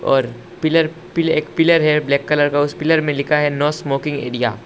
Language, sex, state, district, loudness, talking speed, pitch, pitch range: Hindi, male, Assam, Hailakandi, -17 LUFS, 220 wpm, 150 Hz, 140-160 Hz